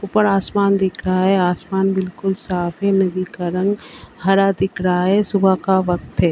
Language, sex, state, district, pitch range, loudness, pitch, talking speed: Hindi, female, Uttar Pradesh, Varanasi, 180-195 Hz, -18 LUFS, 190 Hz, 190 wpm